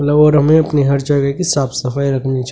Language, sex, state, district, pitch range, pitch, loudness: Hindi, male, Delhi, New Delhi, 135-150 Hz, 140 Hz, -14 LUFS